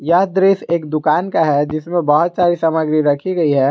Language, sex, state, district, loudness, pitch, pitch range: Hindi, male, Jharkhand, Garhwa, -16 LUFS, 160 Hz, 155-175 Hz